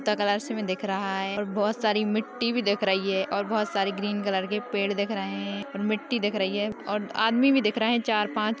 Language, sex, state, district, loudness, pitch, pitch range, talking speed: Hindi, female, Bihar, Jamui, -26 LUFS, 205 Hz, 200-215 Hz, 245 wpm